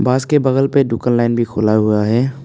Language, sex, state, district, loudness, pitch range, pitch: Hindi, male, Arunachal Pradesh, Papum Pare, -15 LUFS, 110-135 Hz, 120 Hz